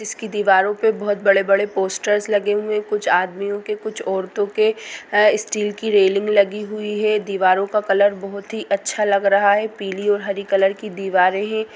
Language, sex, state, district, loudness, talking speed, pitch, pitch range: Hindi, female, Chhattisgarh, Sukma, -19 LUFS, 190 wpm, 205 Hz, 195-210 Hz